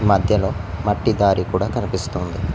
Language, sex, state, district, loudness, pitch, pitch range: Telugu, male, Telangana, Mahabubabad, -20 LUFS, 100 Hz, 95-105 Hz